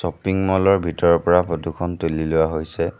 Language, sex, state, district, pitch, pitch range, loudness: Assamese, male, Assam, Sonitpur, 85 Hz, 80-90 Hz, -20 LUFS